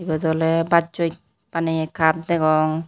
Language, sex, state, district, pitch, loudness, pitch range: Chakma, female, Tripura, Unakoti, 160 Hz, -21 LUFS, 160-165 Hz